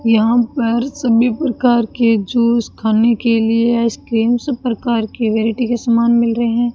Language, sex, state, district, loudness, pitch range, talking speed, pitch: Hindi, female, Rajasthan, Bikaner, -15 LUFS, 225-240 Hz, 170 wpm, 235 Hz